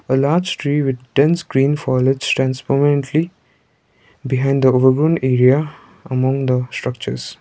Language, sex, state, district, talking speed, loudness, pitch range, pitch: English, male, Sikkim, Gangtok, 130 wpm, -17 LUFS, 130-145 Hz, 135 Hz